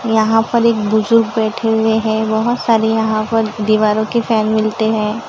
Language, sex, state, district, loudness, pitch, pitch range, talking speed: Hindi, female, Maharashtra, Gondia, -15 LUFS, 220 Hz, 215-225 Hz, 180 wpm